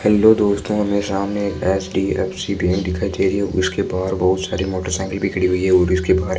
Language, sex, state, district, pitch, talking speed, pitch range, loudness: Hindi, female, Rajasthan, Bikaner, 95 Hz, 225 wpm, 95-100 Hz, -19 LUFS